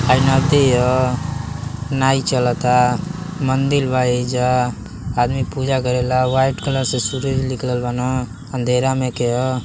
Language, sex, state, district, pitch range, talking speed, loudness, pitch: Bhojpuri, male, Uttar Pradesh, Deoria, 125-135 Hz, 145 wpm, -18 LUFS, 130 Hz